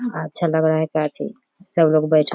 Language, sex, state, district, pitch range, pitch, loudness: Hindi, female, Bihar, East Champaran, 155-170 Hz, 160 Hz, -19 LUFS